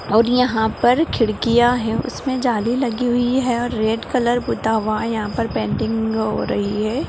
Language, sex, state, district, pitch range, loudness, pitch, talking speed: Hindi, female, Bihar, Purnia, 220-245 Hz, -19 LUFS, 230 Hz, 195 wpm